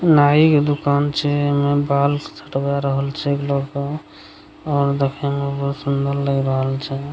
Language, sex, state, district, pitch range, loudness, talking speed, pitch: Maithili, male, Bihar, Begusarai, 140-145 Hz, -19 LUFS, 160 wpm, 140 Hz